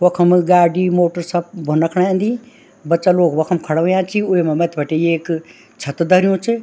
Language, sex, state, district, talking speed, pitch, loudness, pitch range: Garhwali, female, Uttarakhand, Tehri Garhwal, 180 wpm, 175 Hz, -16 LUFS, 165-185 Hz